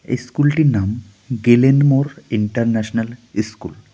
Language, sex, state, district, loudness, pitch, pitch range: Bengali, male, West Bengal, Darjeeling, -17 LUFS, 120 Hz, 110-135 Hz